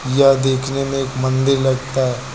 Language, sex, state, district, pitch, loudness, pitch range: Hindi, male, Uttar Pradesh, Lucknow, 135 Hz, -17 LUFS, 130-135 Hz